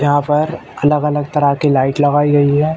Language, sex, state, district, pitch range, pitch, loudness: Hindi, male, Uttar Pradesh, Ghazipur, 145-150 Hz, 145 Hz, -14 LUFS